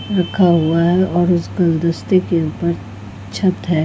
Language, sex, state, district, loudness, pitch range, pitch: Hindi, female, Goa, North and South Goa, -16 LUFS, 155-180 Hz, 170 Hz